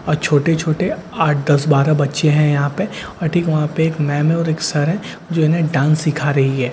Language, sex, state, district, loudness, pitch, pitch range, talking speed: Hindi, male, Bihar, Katihar, -17 LUFS, 155 Hz, 145-165 Hz, 240 wpm